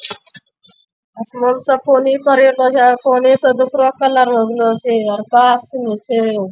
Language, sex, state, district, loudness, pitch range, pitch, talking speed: Angika, female, Bihar, Bhagalpur, -13 LUFS, 230-265 Hz, 250 Hz, 140 wpm